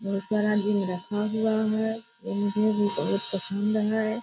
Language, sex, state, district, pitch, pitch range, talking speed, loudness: Hindi, female, Bihar, Purnia, 210 Hz, 200-220 Hz, 140 wpm, -27 LUFS